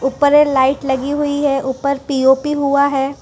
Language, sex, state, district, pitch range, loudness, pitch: Hindi, female, Gujarat, Valsad, 265-285 Hz, -15 LUFS, 280 Hz